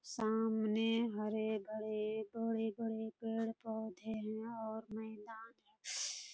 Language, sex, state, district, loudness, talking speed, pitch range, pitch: Hindi, female, Bihar, Purnia, -40 LUFS, 75 wpm, 215-225 Hz, 220 Hz